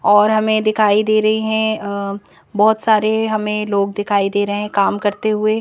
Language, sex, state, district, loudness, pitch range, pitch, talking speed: Hindi, female, Madhya Pradesh, Bhopal, -16 LUFS, 205-215 Hz, 210 Hz, 180 wpm